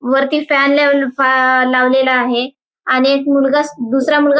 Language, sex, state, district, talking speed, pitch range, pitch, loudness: Marathi, female, Maharashtra, Chandrapur, 150 wpm, 255-285 Hz, 270 Hz, -13 LUFS